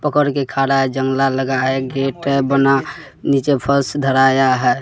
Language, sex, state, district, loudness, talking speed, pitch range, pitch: Hindi, male, Bihar, West Champaran, -16 LUFS, 175 wpm, 135-140 Hz, 135 Hz